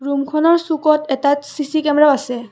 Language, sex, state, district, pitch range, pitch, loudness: Assamese, female, Assam, Kamrup Metropolitan, 280-310 Hz, 295 Hz, -16 LUFS